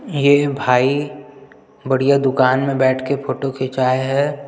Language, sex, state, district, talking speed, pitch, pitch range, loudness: Hindi, male, Chhattisgarh, Jashpur, 135 wpm, 135 Hz, 130-140 Hz, -17 LUFS